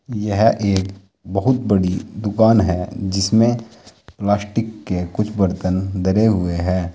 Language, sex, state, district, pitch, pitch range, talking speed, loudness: Hindi, male, Uttar Pradesh, Saharanpur, 100 Hz, 95-110 Hz, 120 wpm, -19 LUFS